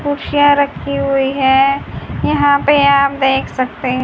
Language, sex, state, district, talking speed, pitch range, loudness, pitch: Hindi, female, Haryana, Charkhi Dadri, 150 wpm, 265-285 Hz, -14 LUFS, 275 Hz